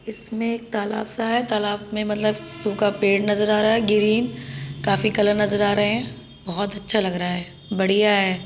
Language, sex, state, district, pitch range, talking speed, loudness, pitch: Hindi, female, Uttar Pradesh, Budaun, 200-215 Hz, 200 wpm, -21 LUFS, 210 Hz